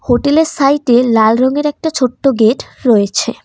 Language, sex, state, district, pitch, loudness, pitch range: Bengali, female, West Bengal, Cooch Behar, 260 Hz, -12 LUFS, 235-285 Hz